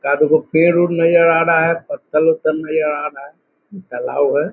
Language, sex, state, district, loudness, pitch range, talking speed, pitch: Hindi, male, Bihar, Muzaffarpur, -15 LUFS, 155-170 Hz, 200 wpm, 160 Hz